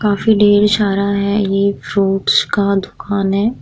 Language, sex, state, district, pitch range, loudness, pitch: Hindi, female, Bihar, Vaishali, 200-205 Hz, -14 LUFS, 200 Hz